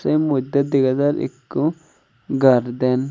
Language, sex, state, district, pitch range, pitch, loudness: Chakma, male, Tripura, Unakoti, 130-145 Hz, 135 Hz, -19 LUFS